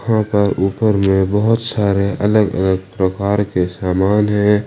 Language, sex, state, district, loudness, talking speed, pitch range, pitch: Hindi, male, Jharkhand, Ranchi, -16 LUFS, 180 wpm, 95-105 Hz, 100 Hz